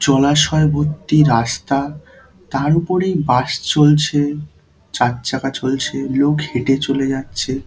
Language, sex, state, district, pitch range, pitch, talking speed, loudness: Bengali, male, West Bengal, Dakshin Dinajpur, 130-150 Hz, 140 Hz, 110 wpm, -17 LUFS